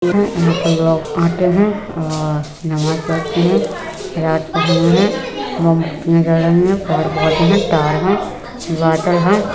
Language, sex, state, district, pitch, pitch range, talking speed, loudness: Hindi, female, Uttar Pradesh, Etah, 165 Hz, 160-180 Hz, 70 wpm, -16 LUFS